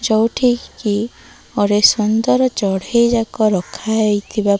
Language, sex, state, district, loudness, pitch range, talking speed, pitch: Odia, female, Odisha, Malkangiri, -16 LUFS, 205-235 Hz, 115 wpm, 220 Hz